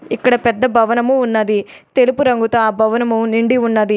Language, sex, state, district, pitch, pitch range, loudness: Telugu, female, Telangana, Adilabad, 230 Hz, 220-250 Hz, -15 LUFS